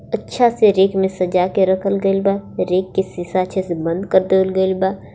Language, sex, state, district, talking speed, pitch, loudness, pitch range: Bhojpuri, female, Jharkhand, Palamu, 220 wpm, 190 Hz, -17 LUFS, 185-195 Hz